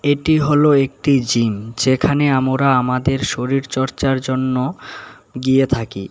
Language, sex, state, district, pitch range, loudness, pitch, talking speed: Bengali, male, Tripura, West Tripura, 125-140 Hz, -17 LUFS, 135 Hz, 110 wpm